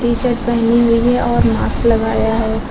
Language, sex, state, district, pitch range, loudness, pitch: Hindi, female, Uttar Pradesh, Lucknow, 225-240 Hz, -15 LUFS, 235 Hz